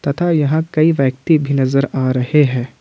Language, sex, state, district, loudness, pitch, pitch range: Hindi, male, Jharkhand, Ranchi, -15 LUFS, 140 Hz, 130-155 Hz